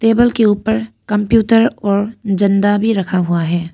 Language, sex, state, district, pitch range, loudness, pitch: Hindi, female, Arunachal Pradesh, Papum Pare, 200-225 Hz, -15 LUFS, 210 Hz